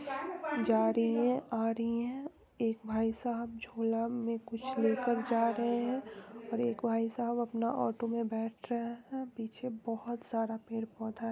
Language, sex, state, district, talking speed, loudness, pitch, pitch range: Hindi, female, Bihar, East Champaran, 155 wpm, -34 LUFS, 230 Hz, 225-240 Hz